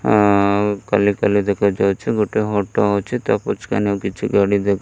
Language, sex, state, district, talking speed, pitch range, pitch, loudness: Odia, male, Odisha, Malkangiri, 175 wpm, 100-105 Hz, 100 Hz, -18 LUFS